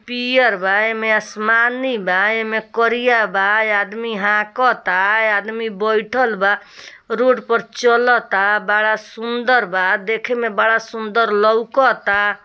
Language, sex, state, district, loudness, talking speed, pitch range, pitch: Bhojpuri, female, Bihar, East Champaran, -16 LUFS, 115 wpm, 210-235 Hz, 220 Hz